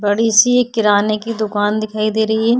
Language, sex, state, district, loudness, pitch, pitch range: Hindi, female, Uttar Pradesh, Budaun, -15 LUFS, 215 Hz, 210-230 Hz